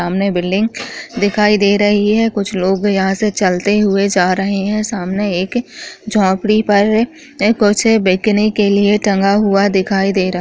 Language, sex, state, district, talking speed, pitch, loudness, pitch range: Hindi, female, Chhattisgarh, Raigarh, 175 wpm, 205 Hz, -14 LUFS, 195-215 Hz